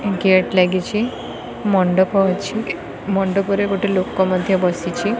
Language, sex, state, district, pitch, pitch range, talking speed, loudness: Odia, female, Odisha, Khordha, 195 Hz, 185-200 Hz, 115 wpm, -18 LUFS